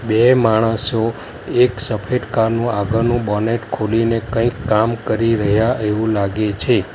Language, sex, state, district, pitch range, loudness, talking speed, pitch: Gujarati, male, Gujarat, Valsad, 105-115 Hz, -17 LUFS, 140 wpm, 110 Hz